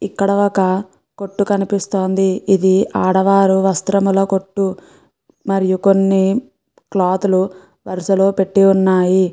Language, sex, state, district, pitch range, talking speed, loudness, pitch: Telugu, female, Andhra Pradesh, Guntur, 190-195 Hz, 105 wpm, -15 LUFS, 195 Hz